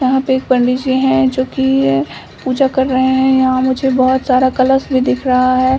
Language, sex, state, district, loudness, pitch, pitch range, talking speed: Hindi, female, Bihar, Samastipur, -13 LUFS, 260 Hz, 255-260 Hz, 220 wpm